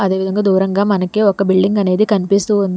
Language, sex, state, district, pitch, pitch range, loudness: Telugu, female, Telangana, Hyderabad, 195 Hz, 190-205 Hz, -14 LUFS